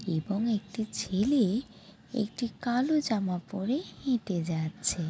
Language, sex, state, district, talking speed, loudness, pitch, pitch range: Bengali, female, West Bengal, Jalpaiguri, 105 wpm, -30 LUFS, 215 Hz, 185-240 Hz